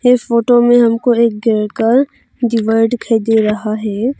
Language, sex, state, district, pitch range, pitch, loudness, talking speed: Hindi, female, Arunachal Pradesh, Longding, 220-240 Hz, 230 Hz, -13 LUFS, 155 wpm